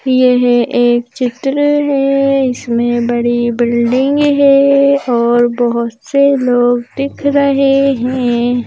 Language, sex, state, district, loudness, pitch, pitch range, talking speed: Hindi, female, Madhya Pradesh, Bhopal, -12 LUFS, 250 Hz, 240-275 Hz, 105 wpm